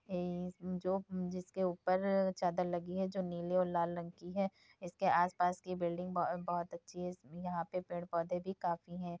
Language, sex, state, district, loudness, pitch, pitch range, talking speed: Hindi, female, Uttar Pradesh, Deoria, -38 LUFS, 180 Hz, 175-185 Hz, 190 wpm